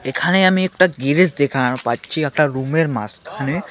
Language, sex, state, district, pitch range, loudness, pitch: Bengali, male, West Bengal, Alipurduar, 130-175 Hz, -17 LUFS, 145 Hz